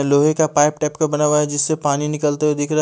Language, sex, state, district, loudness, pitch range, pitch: Hindi, male, Haryana, Charkhi Dadri, -18 LUFS, 145-155 Hz, 150 Hz